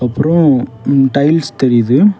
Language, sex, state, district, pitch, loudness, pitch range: Tamil, male, Tamil Nadu, Kanyakumari, 140 Hz, -12 LUFS, 130-160 Hz